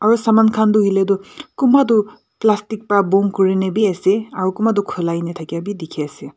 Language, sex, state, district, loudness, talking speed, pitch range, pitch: Nagamese, female, Nagaland, Kohima, -17 LUFS, 215 wpm, 185-220 Hz, 200 Hz